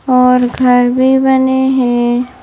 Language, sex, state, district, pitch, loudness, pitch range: Hindi, female, Madhya Pradesh, Bhopal, 250 Hz, -11 LUFS, 245-260 Hz